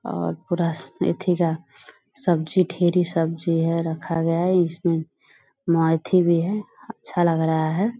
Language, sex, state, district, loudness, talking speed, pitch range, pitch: Hindi, female, Bihar, Purnia, -22 LUFS, 150 wpm, 165-180 Hz, 170 Hz